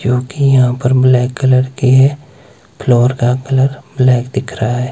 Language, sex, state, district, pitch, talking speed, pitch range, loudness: Hindi, male, Himachal Pradesh, Shimla, 130 Hz, 170 wpm, 125-135 Hz, -13 LUFS